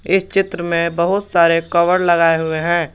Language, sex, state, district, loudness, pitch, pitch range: Hindi, male, Jharkhand, Garhwa, -16 LUFS, 170 Hz, 170-185 Hz